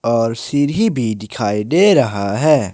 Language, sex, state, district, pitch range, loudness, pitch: Hindi, male, Jharkhand, Ranchi, 105-150 Hz, -16 LUFS, 115 Hz